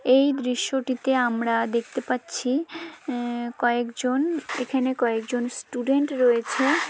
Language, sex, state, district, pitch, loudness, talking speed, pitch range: Bengali, female, West Bengal, Dakshin Dinajpur, 250 Hz, -24 LUFS, 105 wpm, 240-265 Hz